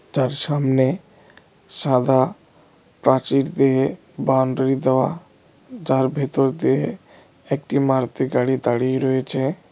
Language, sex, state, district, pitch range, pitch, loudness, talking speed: Bengali, male, Tripura, West Tripura, 130-140 Hz, 135 Hz, -20 LUFS, 95 wpm